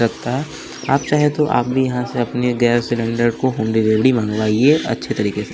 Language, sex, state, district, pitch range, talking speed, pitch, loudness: Hindi, male, Bihar, West Champaran, 115-130 Hz, 205 wpm, 120 Hz, -18 LUFS